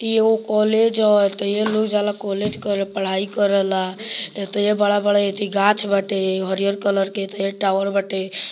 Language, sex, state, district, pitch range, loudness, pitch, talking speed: Bhojpuri, male, Bihar, Muzaffarpur, 195-210 Hz, -20 LUFS, 200 Hz, 160 wpm